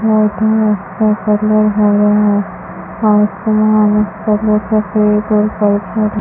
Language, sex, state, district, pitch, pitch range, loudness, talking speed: Hindi, female, Rajasthan, Bikaner, 210 Hz, 210-215 Hz, -13 LUFS, 125 wpm